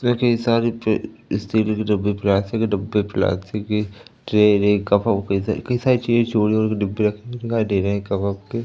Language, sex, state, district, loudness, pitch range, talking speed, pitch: Hindi, male, Madhya Pradesh, Katni, -20 LUFS, 100-115 Hz, 210 wpm, 105 Hz